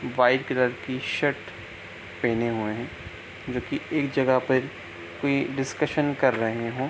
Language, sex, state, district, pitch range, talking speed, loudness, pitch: Hindi, male, Bihar, East Champaran, 105-135 Hz, 155 wpm, -26 LUFS, 125 Hz